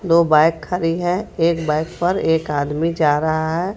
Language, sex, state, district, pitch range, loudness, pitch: Hindi, female, Jharkhand, Ranchi, 155-175 Hz, -18 LUFS, 165 Hz